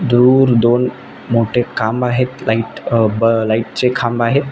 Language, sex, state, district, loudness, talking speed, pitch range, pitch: Marathi, male, Maharashtra, Nagpur, -15 LUFS, 160 wpm, 115-125 Hz, 120 Hz